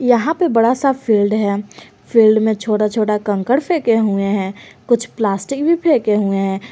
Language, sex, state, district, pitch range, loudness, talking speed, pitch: Hindi, female, Jharkhand, Garhwa, 205-250 Hz, -16 LUFS, 180 wpm, 220 Hz